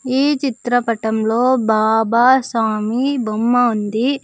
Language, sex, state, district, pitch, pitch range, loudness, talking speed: Telugu, female, Andhra Pradesh, Sri Satya Sai, 235 Hz, 220-260 Hz, -16 LUFS, 85 wpm